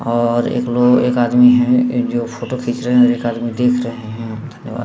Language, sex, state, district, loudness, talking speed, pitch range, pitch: Hindi, male, Bihar, Saran, -15 LUFS, 210 wpm, 120-125 Hz, 120 Hz